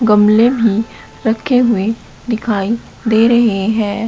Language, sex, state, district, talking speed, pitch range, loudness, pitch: Hindi, male, Uttar Pradesh, Shamli, 115 wpm, 215-235 Hz, -14 LUFS, 225 Hz